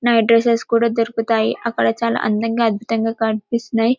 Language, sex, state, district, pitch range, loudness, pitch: Telugu, female, Telangana, Karimnagar, 225-235 Hz, -18 LUFS, 230 Hz